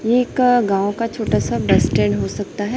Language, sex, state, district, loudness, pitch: Hindi, female, Chhattisgarh, Raipur, -18 LUFS, 200 Hz